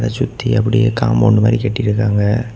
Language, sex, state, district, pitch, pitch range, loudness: Tamil, male, Tamil Nadu, Kanyakumari, 115 Hz, 105-120 Hz, -15 LUFS